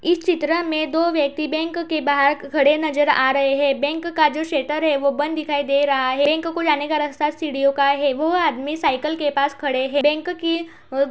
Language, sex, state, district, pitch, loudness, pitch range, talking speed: Hindi, female, Uttar Pradesh, Budaun, 295 Hz, -20 LUFS, 280-315 Hz, 225 wpm